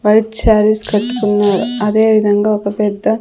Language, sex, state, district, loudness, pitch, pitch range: Telugu, female, Andhra Pradesh, Sri Satya Sai, -13 LUFS, 210 Hz, 205-220 Hz